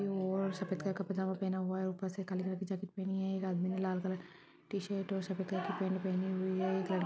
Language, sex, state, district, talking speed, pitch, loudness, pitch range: Hindi, female, Chhattisgarh, Rajnandgaon, 280 wpm, 190 Hz, -37 LUFS, 185-190 Hz